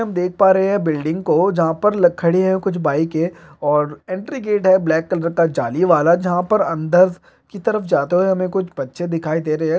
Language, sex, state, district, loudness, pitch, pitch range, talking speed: Hindi, male, Bihar, East Champaran, -17 LUFS, 175 Hz, 160-190 Hz, 225 wpm